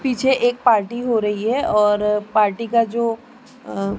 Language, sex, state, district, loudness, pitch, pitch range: Hindi, female, Maharashtra, Mumbai Suburban, -19 LUFS, 230 Hz, 210-245 Hz